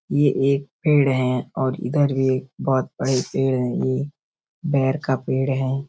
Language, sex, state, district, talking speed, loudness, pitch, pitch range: Hindi, male, Bihar, Darbhanga, 175 wpm, -21 LUFS, 135 Hz, 130-140 Hz